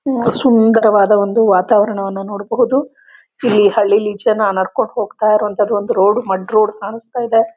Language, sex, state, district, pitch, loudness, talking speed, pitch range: Kannada, female, Karnataka, Chamarajanagar, 215 Hz, -14 LUFS, 120 wpm, 205-230 Hz